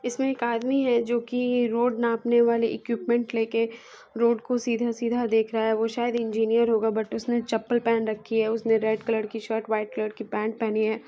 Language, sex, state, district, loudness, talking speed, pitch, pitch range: Hindi, female, Bihar, Muzaffarpur, -25 LUFS, 210 wpm, 230 Hz, 220-235 Hz